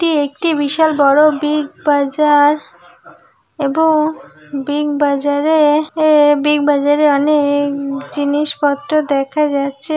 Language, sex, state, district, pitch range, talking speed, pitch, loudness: Bengali, female, West Bengal, Purulia, 285-305 Hz, 85 wpm, 295 Hz, -14 LUFS